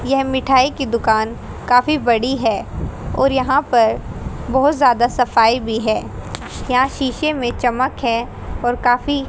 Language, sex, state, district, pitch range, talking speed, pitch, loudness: Hindi, female, Haryana, Rohtak, 235-270 Hz, 140 wpm, 250 Hz, -17 LUFS